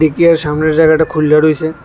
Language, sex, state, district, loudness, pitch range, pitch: Bengali, male, Tripura, West Tripura, -11 LUFS, 155-160 Hz, 155 Hz